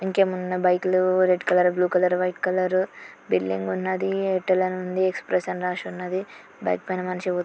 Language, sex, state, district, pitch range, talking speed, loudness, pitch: Telugu, female, Telangana, Nalgonda, 180-185 Hz, 155 wpm, -24 LUFS, 185 Hz